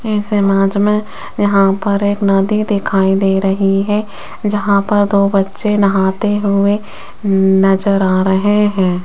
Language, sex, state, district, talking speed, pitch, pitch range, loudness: Hindi, female, Rajasthan, Jaipur, 140 wpm, 200 Hz, 195-205 Hz, -14 LUFS